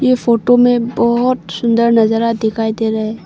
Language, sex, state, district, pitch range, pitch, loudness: Hindi, female, Arunachal Pradesh, Longding, 220-245 Hz, 230 Hz, -14 LUFS